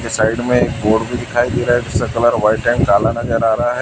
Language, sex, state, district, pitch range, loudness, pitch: Hindi, male, Chhattisgarh, Raipur, 110-120 Hz, -15 LUFS, 120 Hz